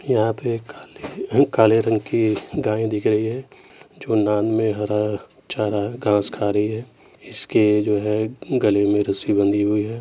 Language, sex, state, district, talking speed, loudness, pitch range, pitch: Hindi, male, Uttar Pradesh, Muzaffarnagar, 160 wpm, -20 LUFS, 105-110 Hz, 105 Hz